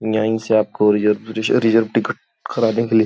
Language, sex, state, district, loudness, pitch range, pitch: Hindi, male, Uttar Pradesh, Gorakhpur, -18 LUFS, 110-115 Hz, 110 Hz